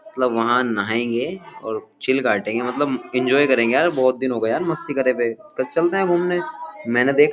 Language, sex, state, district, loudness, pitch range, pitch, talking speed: Hindi, male, Uttar Pradesh, Jyotiba Phule Nagar, -20 LUFS, 120-145 Hz, 130 Hz, 205 wpm